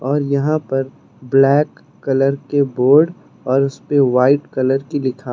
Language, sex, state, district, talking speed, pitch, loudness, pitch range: Hindi, male, Uttar Pradesh, Lucknow, 145 wpm, 135 Hz, -16 LUFS, 130-145 Hz